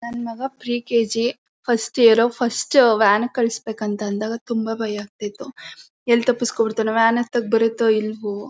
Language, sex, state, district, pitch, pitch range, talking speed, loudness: Kannada, female, Karnataka, Mysore, 230 Hz, 220-240 Hz, 160 wpm, -20 LUFS